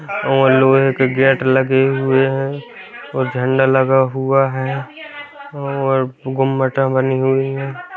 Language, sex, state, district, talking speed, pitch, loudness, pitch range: Hindi, male, Rajasthan, Nagaur, 135 wpm, 135 Hz, -16 LUFS, 130-135 Hz